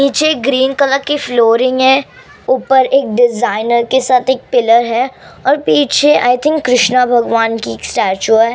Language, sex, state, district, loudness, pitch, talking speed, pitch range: Hindi, female, Maharashtra, Mumbai Suburban, -12 LUFS, 250 Hz, 170 wpm, 230-270 Hz